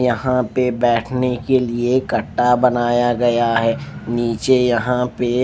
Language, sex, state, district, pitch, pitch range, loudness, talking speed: Hindi, male, Maharashtra, Mumbai Suburban, 125 Hz, 120-125 Hz, -18 LUFS, 145 wpm